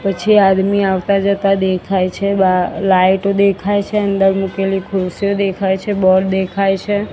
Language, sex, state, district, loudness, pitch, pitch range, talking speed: Gujarati, female, Gujarat, Gandhinagar, -15 LUFS, 195 Hz, 190-200 Hz, 150 wpm